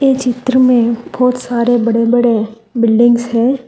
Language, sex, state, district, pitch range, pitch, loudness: Hindi, female, Telangana, Hyderabad, 230-250 Hz, 240 Hz, -13 LUFS